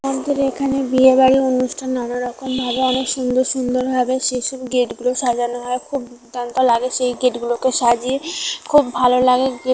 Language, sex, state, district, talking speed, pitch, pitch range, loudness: Bengali, female, West Bengal, North 24 Parganas, 165 wpm, 255 Hz, 245-260 Hz, -18 LUFS